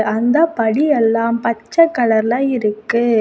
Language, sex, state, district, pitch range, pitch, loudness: Tamil, female, Tamil Nadu, Kanyakumari, 220-260 Hz, 235 Hz, -15 LUFS